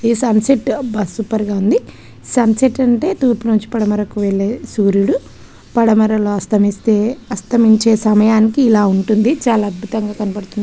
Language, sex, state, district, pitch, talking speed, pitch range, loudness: Telugu, female, Andhra Pradesh, Krishna, 220 Hz, 135 wpm, 210-235 Hz, -15 LUFS